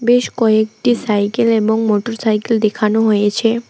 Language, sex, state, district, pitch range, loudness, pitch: Bengali, female, West Bengal, Alipurduar, 215-230 Hz, -15 LUFS, 220 Hz